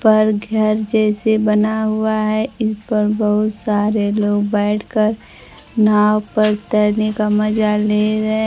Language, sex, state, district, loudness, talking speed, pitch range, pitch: Hindi, female, Bihar, Kaimur, -17 LUFS, 135 wpm, 210-215 Hz, 215 Hz